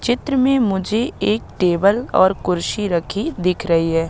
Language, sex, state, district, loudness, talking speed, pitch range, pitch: Hindi, female, Madhya Pradesh, Katni, -18 LUFS, 160 wpm, 175-230 Hz, 195 Hz